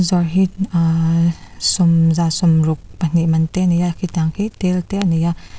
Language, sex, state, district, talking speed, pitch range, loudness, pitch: Mizo, female, Mizoram, Aizawl, 215 wpm, 165-180 Hz, -17 LUFS, 170 Hz